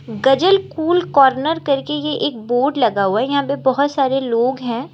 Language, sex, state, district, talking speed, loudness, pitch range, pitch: Hindi, female, Uttar Pradesh, Lucknow, 195 wpm, -17 LUFS, 250-295 Hz, 270 Hz